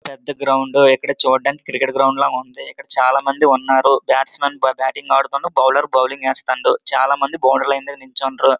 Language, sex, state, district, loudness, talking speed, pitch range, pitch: Telugu, male, Andhra Pradesh, Srikakulam, -16 LUFS, 165 wpm, 130-140 Hz, 135 Hz